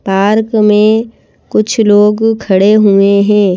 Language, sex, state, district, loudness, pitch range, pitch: Hindi, female, Madhya Pradesh, Bhopal, -9 LUFS, 200-220 Hz, 210 Hz